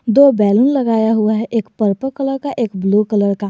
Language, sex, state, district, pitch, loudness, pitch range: Hindi, male, Jharkhand, Garhwa, 225 Hz, -15 LUFS, 210-270 Hz